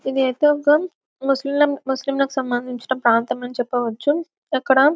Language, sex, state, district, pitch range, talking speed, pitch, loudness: Telugu, female, Telangana, Karimnagar, 250-290 Hz, 135 wpm, 270 Hz, -20 LUFS